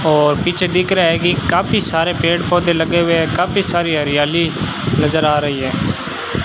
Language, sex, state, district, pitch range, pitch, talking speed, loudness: Hindi, male, Rajasthan, Bikaner, 150-175 Hz, 165 Hz, 185 wpm, -15 LUFS